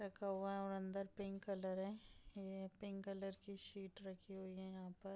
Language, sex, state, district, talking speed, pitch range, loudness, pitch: Hindi, female, Bihar, Darbhanga, 210 wpm, 190-200 Hz, -49 LUFS, 195 Hz